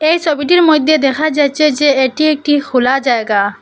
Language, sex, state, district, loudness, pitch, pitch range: Bengali, female, Assam, Hailakandi, -12 LUFS, 290 Hz, 265-310 Hz